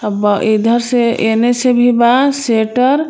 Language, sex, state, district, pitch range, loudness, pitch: Bhojpuri, female, Jharkhand, Palamu, 220-250 Hz, -12 LUFS, 240 Hz